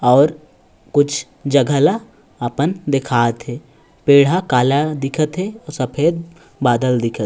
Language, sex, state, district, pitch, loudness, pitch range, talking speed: Chhattisgarhi, male, Chhattisgarh, Raigarh, 140 Hz, -17 LUFS, 125-155 Hz, 140 wpm